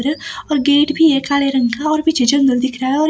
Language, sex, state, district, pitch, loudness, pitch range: Hindi, female, Himachal Pradesh, Shimla, 285 Hz, -15 LUFS, 265-305 Hz